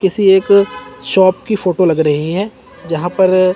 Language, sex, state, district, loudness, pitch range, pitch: Hindi, male, Chandigarh, Chandigarh, -13 LUFS, 175-200 Hz, 185 Hz